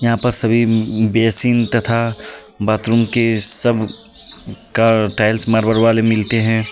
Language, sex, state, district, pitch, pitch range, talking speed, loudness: Hindi, male, Jharkhand, Deoghar, 115 Hz, 110-115 Hz, 125 wpm, -15 LUFS